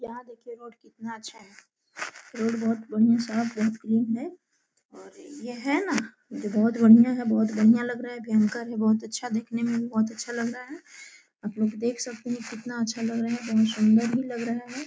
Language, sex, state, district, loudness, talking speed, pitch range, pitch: Hindi, female, Jharkhand, Sahebganj, -25 LUFS, 195 wpm, 220-240 Hz, 230 Hz